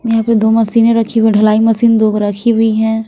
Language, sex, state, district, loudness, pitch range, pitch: Hindi, female, Punjab, Kapurthala, -11 LUFS, 220-230 Hz, 225 Hz